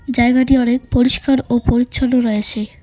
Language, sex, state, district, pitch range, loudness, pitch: Bengali, female, West Bengal, Cooch Behar, 240-260 Hz, -15 LUFS, 250 Hz